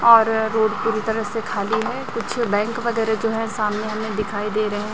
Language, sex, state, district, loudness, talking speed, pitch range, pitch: Hindi, male, Chhattisgarh, Raipur, -21 LUFS, 205 wpm, 215-225 Hz, 220 Hz